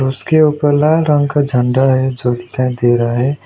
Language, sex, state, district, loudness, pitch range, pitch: Hindi, male, West Bengal, Alipurduar, -14 LUFS, 125-145 Hz, 130 Hz